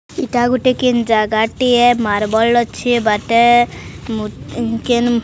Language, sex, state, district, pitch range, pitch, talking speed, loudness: Odia, female, Odisha, Sambalpur, 220-240 Hz, 235 Hz, 125 wpm, -15 LUFS